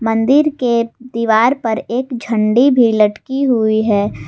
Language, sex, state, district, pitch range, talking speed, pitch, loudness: Hindi, female, Jharkhand, Garhwa, 220-255 Hz, 140 wpm, 230 Hz, -14 LUFS